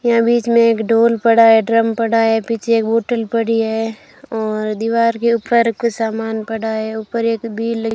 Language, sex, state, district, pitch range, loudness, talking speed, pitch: Hindi, female, Rajasthan, Bikaner, 225-230 Hz, -16 LUFS, 195 wpm, 230 Hz